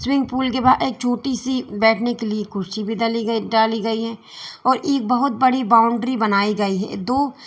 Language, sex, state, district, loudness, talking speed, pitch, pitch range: Hindi, female, Uttar Pradesh, Lalitpur, -19 LUFS, 210 wpm, 230 Hz, 220-260 Hz